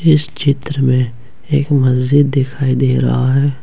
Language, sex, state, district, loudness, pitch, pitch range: Hindi, male, Jharkhand, Ranchi, -14 LUFS, 135 Hz, 125-145 Hz